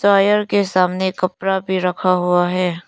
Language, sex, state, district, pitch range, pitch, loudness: Hindi, female, Arunachal Pradesh, Lower Dibang Valley, 180-195 Hz, 185 Hz, -17 LUFS